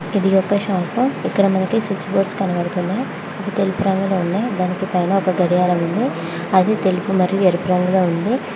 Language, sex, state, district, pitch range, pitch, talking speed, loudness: Telugu, female, Telangana, Mahabubabad, 180-200 Hz, 190 Hz, 140 wpm, -18 LUFS